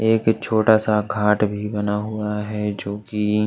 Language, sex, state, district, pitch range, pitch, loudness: Hindi, male, Maharashtra, Washim, 105-110 Hz, 105 Hz, -21 LUFS